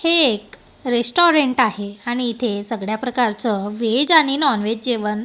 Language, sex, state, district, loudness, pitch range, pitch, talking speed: Marathi, female, Maharashtra, Gondia, -17 LUFS, 215-265 Hz, 240 Hz, 135 wpm